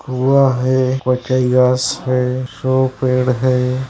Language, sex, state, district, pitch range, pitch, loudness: Hindi, male, Bihar, Gopalganj, 125-130 Hz, 130 Hz, -16 LUFS